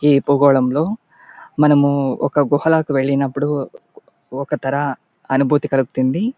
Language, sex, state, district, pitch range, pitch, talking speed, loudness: Telugu, male, Andhra Pradesh, Anantapur, 135-150 Hz, 140 Hz, 95 wpm, -17 LUFS